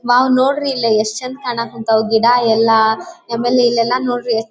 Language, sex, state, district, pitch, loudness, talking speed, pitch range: Kannada, female, Karnataka, Dharwad, 240 Hz, -15 LUFS, 160 wpm, 225-250 Hz